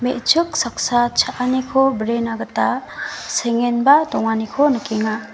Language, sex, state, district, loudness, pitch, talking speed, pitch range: Garo, female, Meghalaya, West Garo Hills, -18 LUFS, 245 Hz, 90 wpm, 230-265 Hz